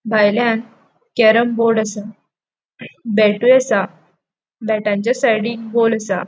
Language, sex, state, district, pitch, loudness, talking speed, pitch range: Konkani, female, Goa, North and South Goa, 220 Hz, -16 LUFS, 95 wpm, 210-230 Hz